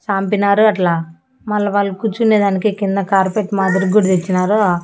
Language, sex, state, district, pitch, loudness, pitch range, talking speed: Telugu, female, Andhra Pradesh, Annamaya, 200 Hz, -15 LUFS, 190-210 Hz, 125 wpm